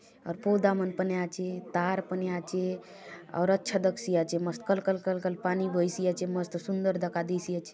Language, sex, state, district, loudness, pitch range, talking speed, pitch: Halbi, female, Chhattisgarh, Bastar, -30 LUFS, 175-190 Hz, 195 wpm, 185 Hz